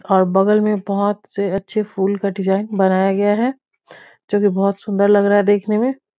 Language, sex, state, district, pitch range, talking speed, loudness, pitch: Hindi, female, Bihar, Muzaffarpur, 195-210 Hz, 205 wpm, -17 LUFS, 200 Hz